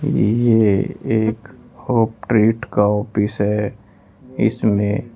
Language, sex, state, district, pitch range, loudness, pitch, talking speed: Hindi, male, Uttar Pradesh, Shamli, 105-120 Hz, -18 LUFS, 110 Hz, 95 wpm